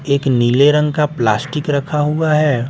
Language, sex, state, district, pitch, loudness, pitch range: Hindi, male, Bihar, Patna, 145 Hz, -15 LUFS, 130-150 Hz